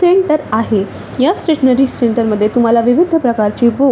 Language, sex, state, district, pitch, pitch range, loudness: Marathi, female, Maharashtra, Chandrapur, 240 Hz, 225-300 Hz, -13 LUFS